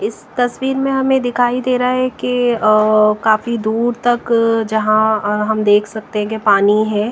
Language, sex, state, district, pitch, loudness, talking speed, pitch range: Hindi, female, Bihar, West Champaran, 225 Hz, -15 LUFS, 175 wpm, 215-245 Hz